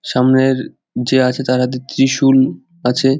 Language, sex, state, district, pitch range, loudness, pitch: Bengali, male, West Bengal, Jhargram, 125-135 Hz, -15 LUFS, 130 Hz